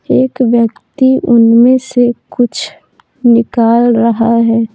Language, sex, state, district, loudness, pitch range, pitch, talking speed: Hindi, female, Bihar, Patna, -10 LUFS, 230-250 Hz, 235 Hz, 100 wpm